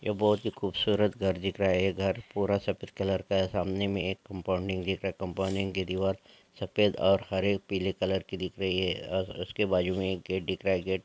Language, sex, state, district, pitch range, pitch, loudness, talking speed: Angika, male, Bihar, Samastipur, 95-100 Hz, 95 Hz, -30 LUFS, 235 wpm